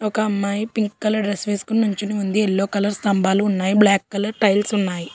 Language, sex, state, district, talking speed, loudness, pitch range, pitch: Telugu, female, Telangana, Hyderabad, 185 wpm, -20 LUFS, 200-215 Hz, 205 Hz